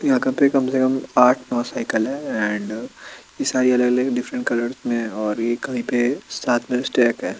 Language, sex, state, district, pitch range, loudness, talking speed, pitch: Hindi, male, Chandigarh, Chandigarh, 120-130 Hz, -21 LUFS, 185 wpm, 125 Hz